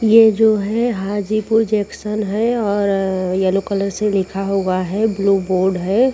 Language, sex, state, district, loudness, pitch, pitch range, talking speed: Hindi, female, Uttar Pradesh, Muzaffarnagar, -17 LUFS, 205 Hz, 195-215 Hz, 155 wpm